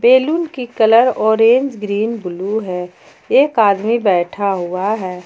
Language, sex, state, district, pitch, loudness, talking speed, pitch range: Hindi, female, Jharkhand, Ranchi, 220 Hz, -15 LUFS, 135 wpm, 190-240 Hz